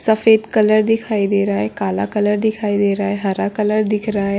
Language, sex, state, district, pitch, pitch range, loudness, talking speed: Hindi, female, Chhattisgarh, Korba, 210 Hz, 200-215 Hz, -17 LUFS, 245 wpm